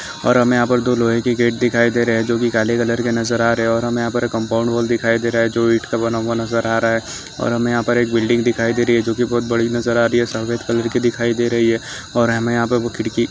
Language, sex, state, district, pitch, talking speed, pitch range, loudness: Hindi, male, Maharashtra, Chandrapur, 115 Hz, 305 wpm, 115-120 Hz, -17 LUFS